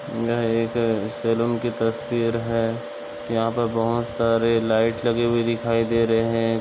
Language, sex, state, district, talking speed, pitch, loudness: Bhojpuri, male, Uttar Pradesh, Gorakhpur, 155 wpm, 115 Hz, -22 LUFS